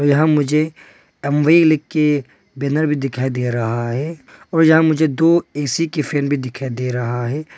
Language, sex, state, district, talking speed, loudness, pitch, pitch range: Hindi, male, Arunachal Pradesh, Papum Pare, 180 wpm, -17 LUFS, 145 Hz, 130-155 Hz